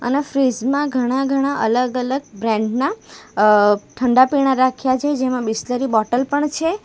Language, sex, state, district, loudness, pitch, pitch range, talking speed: Gujarati, female, Gujarat, Valsad, -18 LUFS, 255 Hz, 240-275 Hz, 165 wpm